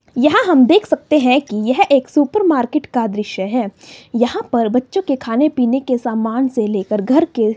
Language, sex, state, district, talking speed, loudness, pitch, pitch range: Hindi, female, Himachal Pradesh, Shimla, 200 wpm, -16 LUFS, 255 Hz, 225-300 Hz